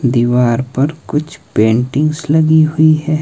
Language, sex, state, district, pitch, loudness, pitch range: Hindi, male, Himachal Pradesh, Shimla, 150 Hz, -13 LUFS, 125-155 Hz